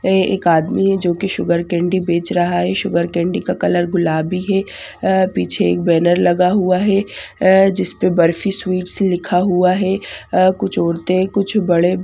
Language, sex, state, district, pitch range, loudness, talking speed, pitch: Hindi, female, Andhra Pradesh, Chittoor, 175-190 Hz, -16 LUFS, 185 wpm, 180 Hz